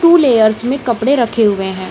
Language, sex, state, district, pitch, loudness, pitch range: Hindi, female, Bihar, Samastipur, 235 Hz, -13 LUFS, 215-270 Hz